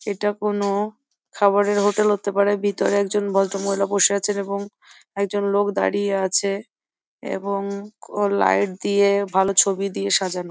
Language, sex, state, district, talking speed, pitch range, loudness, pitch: Bengali, female, West Bengal, Jhargram, 130 wpm, 195-205 Hz, -21 LUFS, 200 Hz